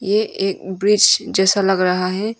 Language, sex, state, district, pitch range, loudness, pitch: Hindi, female, Arunachal Pradesh, Longding, 190-210 Hz, -16 LUFS, 195 Hz